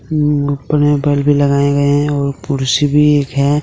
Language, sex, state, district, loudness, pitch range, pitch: Hindi, male, Jharkhand, Deoghar, -14 LUFS, 140-145 Hz, 145 Hz